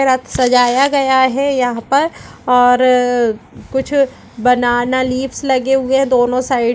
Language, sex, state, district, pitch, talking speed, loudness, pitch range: Hindi, female, Bihar, Gaya, 255 Hz, 135 wpm, -14 LUFS, 245-265 Hz